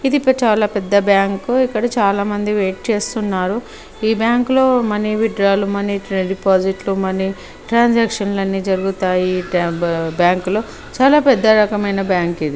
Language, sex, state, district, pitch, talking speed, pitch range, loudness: Telugu, male, Telangana, Nalgonda, 200 Hz, 135 wpm, 190-225 Hz, -16 LUFS